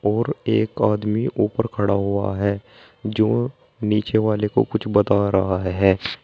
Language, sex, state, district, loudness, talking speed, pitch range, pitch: Hindi, male, Uttar Pradesh, Saharanpur, -21 LUFS, 145 wpm, 100-110 Hz, 105 Hz